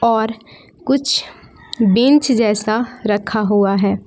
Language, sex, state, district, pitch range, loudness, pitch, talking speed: Hindi, female, Jharkhand, Palamu, 205-250 Hz, -16 LUFS, 220 Hz, 105 wpm